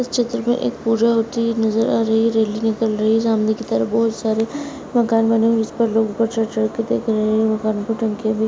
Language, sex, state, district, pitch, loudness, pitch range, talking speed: Hindi, female, Uttar Pradesh, Muzaffarnagar, 225 Hz, -19 LUFS, 220-230 Hz, 250 wpm